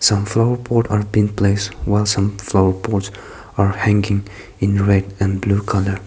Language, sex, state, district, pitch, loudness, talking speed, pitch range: English, male, Nagaland, Kohima, 100 Hz, -18 LUFS, 170 wpm, 100-105 Hz